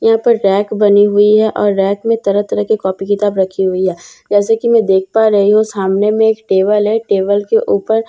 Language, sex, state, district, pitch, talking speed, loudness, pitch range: Hindi, female, Bihar, Katihar, 205 Hz, 250 wpm, -13 LUFS, 195-220 Hz